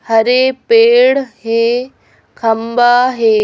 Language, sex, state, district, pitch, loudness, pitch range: Hindi, female, Madhya Pradesh, Bhopal, 235 Hz, -12 LUFS, 225-250 Hz